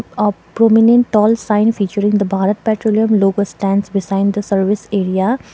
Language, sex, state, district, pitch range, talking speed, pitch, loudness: English, female, Sikkim, Gangtok, 195-220 Hz, 150 wpm, 205 Hz, -15 LUFS